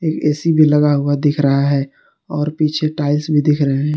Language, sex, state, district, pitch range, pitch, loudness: Hindi, male, Jharkhand, Garhwa, 145-155 Hz, 150 Hz, -16 LUFS